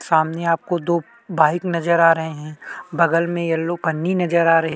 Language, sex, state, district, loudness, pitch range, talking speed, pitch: Hindi, male, Chhattisgarh, Kabirdham, -19 LUFS, 160-170 Hz, 190 wpm, 170 Hz